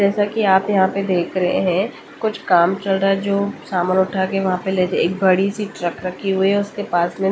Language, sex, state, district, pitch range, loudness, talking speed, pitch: Hindi, female, Delhi, New Delhi, 185-200 Hz, -19 LUFS, 245 wpm, 190 Hz